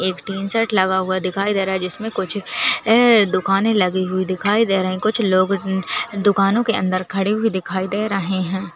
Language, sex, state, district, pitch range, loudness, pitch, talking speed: Hindi, female, Uttarakhand, Uttarkashi, 185-210 Hz, -19 LUFS, 195 Hz, 190 wpm